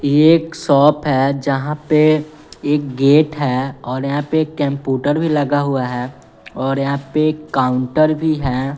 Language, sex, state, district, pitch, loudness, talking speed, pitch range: Hindi, female, Bihar, West Champaran, 145 Hz, -17 LUFS, 165 wpm, 135-155 Hz